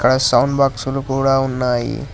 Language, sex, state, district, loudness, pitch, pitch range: Telugu, male, Telangana, Hyderabad, -17 LUFS, 135 Hz, 125-135 Hz